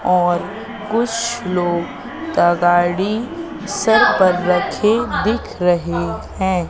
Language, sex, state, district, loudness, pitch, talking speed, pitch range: Hindi, female, Madhya Pradesh, Katni, -17 LUFS, 185 Hz, 90 wpm, 175-230 Hz